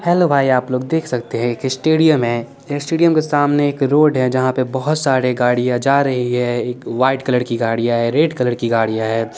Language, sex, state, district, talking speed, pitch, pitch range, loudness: Hindi, male, Chandigarh, Chandigarh, 230 wpm, 130 Hz, 120-145 Hz, -16 LUFS